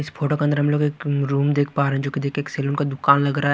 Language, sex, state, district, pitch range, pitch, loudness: Hindi, male, Bihar, Kaimur, 140-145 Hz, 145 Hz, -21 LUFS